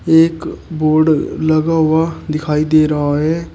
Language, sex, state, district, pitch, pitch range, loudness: Hindi, male, Uttar Pradesh, Shamli, 155 Hz, 155-160 Hz, -14 LUFS